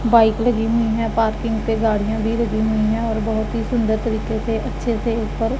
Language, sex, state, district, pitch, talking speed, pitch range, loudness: Hindi, female, Punjab, Pathankot, 225 Hz, 225 wpm, 220-230 Hz, -20 LUFS